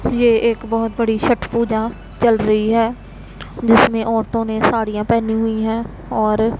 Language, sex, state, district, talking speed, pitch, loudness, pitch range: Hindi, female, Punjab, Pathankot, 165 wpm, 225 Hz, -17 LUFS, 220-230 Hz